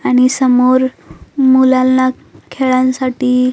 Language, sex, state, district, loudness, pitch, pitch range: Marathi, female, Maharashtra, Solapur, -12 LUFS, 255 Hz, 255-260 Hz